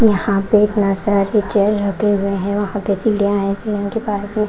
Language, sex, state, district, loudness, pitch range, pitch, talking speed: Hindi, female, Haryana, Rohtak, -17 LUFS, 200-210 Hz, 205 Hz, 200 wpm